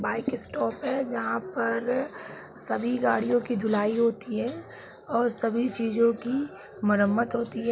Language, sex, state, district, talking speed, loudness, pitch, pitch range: Hindi, female, Bihar, Gaya, 140 wpm, -27 LUFS, 235 Hz, 225-245 Hz